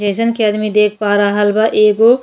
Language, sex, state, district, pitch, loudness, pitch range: Bhojpuri, female, Uttar Pradesh, Ghazipur, 210 Hz, -13 LUFS, 205-220 Hz